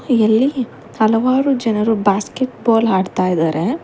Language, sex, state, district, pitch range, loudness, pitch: Kannada, female, Karnataka, Bangalore, 200-250 Hz, -16 LUFS, 225 Hz